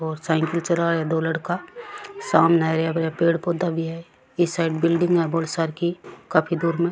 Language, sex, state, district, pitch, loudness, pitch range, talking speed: Rajasthani, female, Rajasthan, Churu, 170 Hz, -22 LUFS, 165-175 Hz, 175 wpm